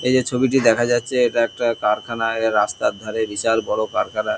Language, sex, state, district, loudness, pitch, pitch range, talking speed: Bengali, male, West Bengal, Kolkata, -20 LUFS, 115 Hz, 110-120 Hz, 190 wpm